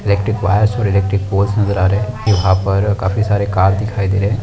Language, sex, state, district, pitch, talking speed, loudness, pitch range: Hindi, male, Bihar, Jahanabad, 100 Hz, 245 wpm, -15 LUFS, 100-105 Hz